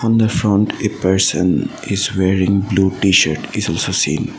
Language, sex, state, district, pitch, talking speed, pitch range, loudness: English, male, Assam, Sonitpur, 95 Hz, 150 wpm, 95-105 Hz, -16 LUFS